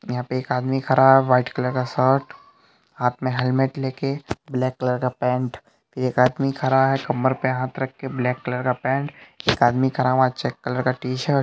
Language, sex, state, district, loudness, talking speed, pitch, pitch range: Hindi, male, Bihar, Supaul, -22 LUFS, 200 wpm, 130 Hz, 125-135 Hz